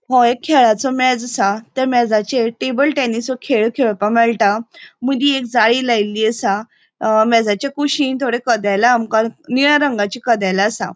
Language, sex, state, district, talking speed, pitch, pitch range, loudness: Konkani, female, Goa, North and South Goa, 150 wpm, 240 Hz, 220-265 Hz, -16 LUFS